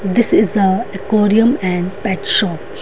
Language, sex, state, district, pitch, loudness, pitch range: Hindi, female, Himachal Pradesh, Shimla, 205 Hz, -15 LUFS, 190-225 Hz